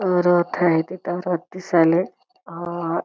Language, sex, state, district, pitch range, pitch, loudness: Marathi, female, Karnataka, Belgaum, 170-180 Hz, 175 Hz, -21 LUFS